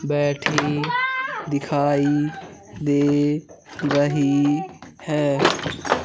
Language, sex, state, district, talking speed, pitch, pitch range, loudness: Hindi, male, Madhya Pradesh, Katni, 50 wpm, 145 Hz, 145-155 Hz, -21 LUFS